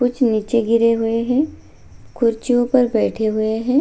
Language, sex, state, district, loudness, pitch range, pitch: Hindi, female, Bihar, Bhagalpur, -18 LUFS, 225-245 Hz, 230 Hz